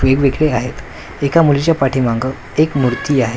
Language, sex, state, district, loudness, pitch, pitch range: Marathi, male, Maharashtra, Washim, -15 LUFS, 135 Hz, 125-150 Hz